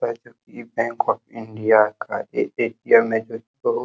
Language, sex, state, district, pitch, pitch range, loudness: Hindi, male, Uttar Pradesh, Hamirpur, 115 Hz, 110-120 Hz, -21 LUFS